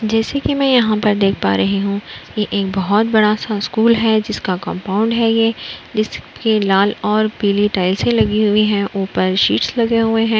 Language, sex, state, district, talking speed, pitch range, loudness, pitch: Hindi, female, Uttar Pradesh, Budaun, 195 wpm, 195-225 Hz, -16 LUFS, 210 Hz